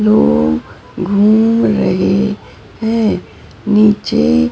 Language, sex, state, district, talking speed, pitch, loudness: Hindi, female, Maharashtra, Mumbai Suburban, 65 wpm, 180 Hz, -13 LUFS